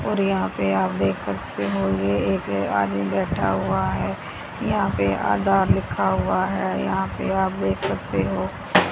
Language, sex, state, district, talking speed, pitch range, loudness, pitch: Hindi, female, Haryana, Rohtak, 170 wpm, 95-100 Hz, -23 LUFS, 95 Hz